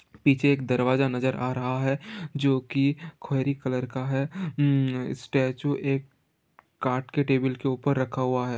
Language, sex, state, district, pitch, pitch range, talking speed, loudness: Hindi, male, Uttar Pradesh, Varanasi, 135 Hz, 130-140 Hz, 160 wpm, -26 LUFS